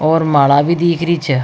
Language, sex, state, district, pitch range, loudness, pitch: Rajasthani, female, Rajasthan, Nagaur, 140-170 Hz, -13 LUFS, 160 Hz